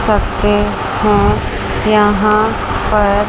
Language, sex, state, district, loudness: Hindi, female, Chandigarh, Chandigarh, -14 LUFS